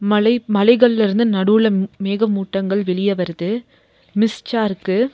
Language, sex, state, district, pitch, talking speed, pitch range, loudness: Tamil, female, Tamil Nadu, Nilgiris, 210 Hz, 115 wpm, 195-225 Hz, -17 LUFS